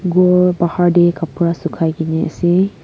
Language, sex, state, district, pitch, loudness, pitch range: Nagamese, female, Nagaland, Kohima, 175 Hz, -15 LUFS, 165-180 Hz